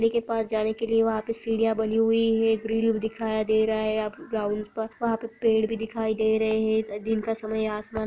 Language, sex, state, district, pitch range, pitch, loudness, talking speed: Hindi, female, Maharashtra, Aurangabad, 220-225 Hz, 220 Hz, -26 LUFS, 215 wpm